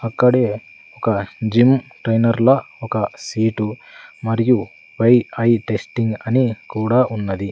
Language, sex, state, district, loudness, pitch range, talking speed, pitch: Telugu, male, Andhra Pradesh, Sri Satya Sai, -18 LUFS, 110-120 Hz, 110 wpm, 115 Hz